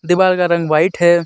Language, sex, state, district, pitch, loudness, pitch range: Hindi, male, Jharkhand, Deoghar, 175 Hz, -14 LUFS, 170-180 Hz